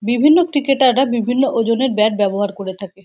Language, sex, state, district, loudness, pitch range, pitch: Bengali, female, West Bengal, North 24 Parganas, -15 LUFS, 205-265 Hz, 235 Hz